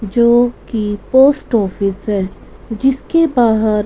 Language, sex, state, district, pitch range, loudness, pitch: Hindi, female, Punjab, Fazilka, 205-250 Hz, -14 LUFS, 225 Hz